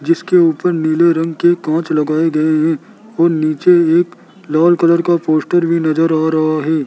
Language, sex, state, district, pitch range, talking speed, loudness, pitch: Hindi, male, Rajasthan, Jaipur, 155-170 Hz, 185 wpm, -14 LUFS, 165 Hz